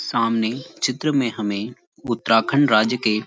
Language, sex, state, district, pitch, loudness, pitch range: Hindi, male, Uttarakhand, Uttarkashi, 115 Hz, -20 LUFS, 110-135 Hz